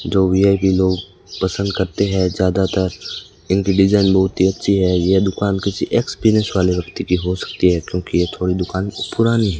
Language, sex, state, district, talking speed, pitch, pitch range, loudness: Hindi, male, Rajasthan, Bikaner, 180 wpm, 95 Hz, 90-100 Hz, -17 LUFS